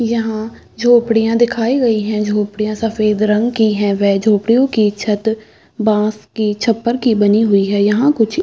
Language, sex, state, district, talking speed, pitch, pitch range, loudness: Hindi, female, Chhattisgarh, Bastar, 170 wpm, 220 Hz, 210-230 Hz, -15 LUFS